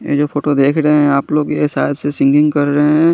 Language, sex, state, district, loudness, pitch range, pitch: Hindi, male, Chandigarh, Chandigarh, -14 LUFS, 145-150 Hz, 145 Hz